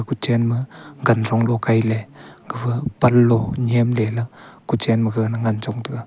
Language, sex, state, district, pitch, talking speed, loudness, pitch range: Wancho, male, Arunachal Pradesh, Longding, 115 Hz, 140 wpm, -19 LUFS, 115-120 Hz